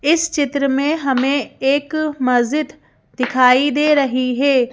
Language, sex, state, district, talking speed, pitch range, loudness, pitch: Hindi, female, Madhya Pradesh, Bhopal, 125 wpm, 255-295 Hz, -17 LUFS, 280 Hz